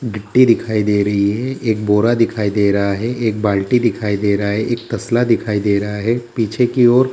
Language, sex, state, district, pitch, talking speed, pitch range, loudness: Hindi, male, Bihar, Gaya, 110 Hz, 220 wpm, 105-120 Hz, -16 LUFS